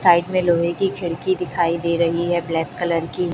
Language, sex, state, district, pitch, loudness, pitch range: Hindi, male, Chhattisgarh, Raipur, 170 Hz, -20 LUFS, 170-180 Hz